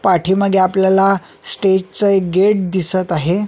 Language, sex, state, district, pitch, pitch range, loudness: Marathi, male, Maharashtra, Solapur, 190 Hz, 185-195 Hz, -14 LUFS